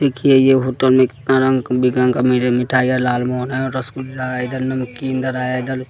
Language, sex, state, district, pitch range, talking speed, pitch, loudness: Hindi, male, Bihar, West Champaran, 125-130 Hz, 215 wpm, 130 Hz, -17 LUFS